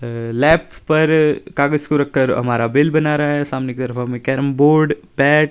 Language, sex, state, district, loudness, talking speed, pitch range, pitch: Hindi, male, Himachal Pradesh, Shimla, -16 LUFS, 220 wpm, 130-150 Hz, 145 Hz